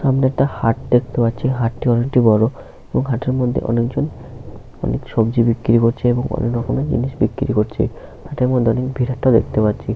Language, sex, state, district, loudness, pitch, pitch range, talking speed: Bengali, male, West Bengal, Paschim Medinipur, -18 LUFS, 120 Hz, 115-130 Hz, 165 wpm